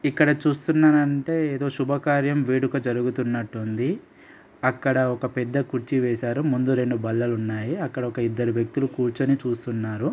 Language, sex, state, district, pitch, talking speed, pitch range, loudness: Telugu, male, Andhra Pradesh, Srikakulam, 130 Hz, 120 wpm, 120-145 Hz, -24 LUFS